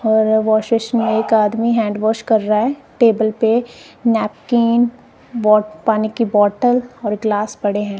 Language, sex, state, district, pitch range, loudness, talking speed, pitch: Hindi, female, Punjab, Kapurthala, 215-235 Hz, -16 LUFS, 155 wpm, 220 Hz